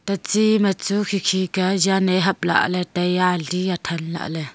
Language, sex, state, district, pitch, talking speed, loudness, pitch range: Wancho, female, Arunachal Pradesh, Longding, 185 Hz, 225 wpm, -20 LUFS, 175-195 Hz